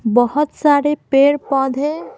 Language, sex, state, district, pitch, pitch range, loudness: Hindi, female, Bihar, Patna, 285 Hz, 270-295 Hz, -16 LUFS